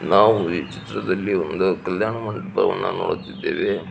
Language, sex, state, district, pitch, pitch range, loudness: Kannada, male, Karnataka, Belgaum, 105 Hz, 90-110 Hz, -22 LUFS